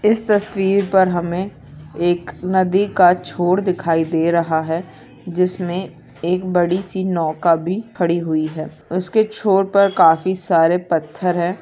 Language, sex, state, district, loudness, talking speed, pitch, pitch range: Hindi, female, Bihar, East Champaran, -18 LUFS, 145 wpm, 180 Hz, 165-190 Hz